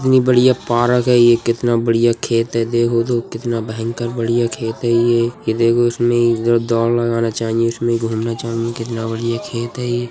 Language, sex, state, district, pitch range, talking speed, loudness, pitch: Hindi, male, Uttar Pradesh, Budaun, 115-120 Hz, 195 wpm, -17 LUFS, 115 Hz